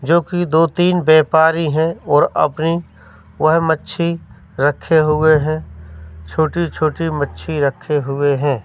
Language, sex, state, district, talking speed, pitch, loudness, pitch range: Hindi, male, Madhya Pradesh, Katni, 130 wpm, 155 Hz, -16 LUFS, 140-165 Hz